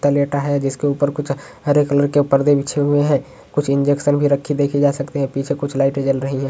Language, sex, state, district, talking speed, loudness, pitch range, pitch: Hindi, male, Uttar Pradesh, Ghazipur, 250 wpm, -18 LUFS, 140-145 Hz, 140 Hz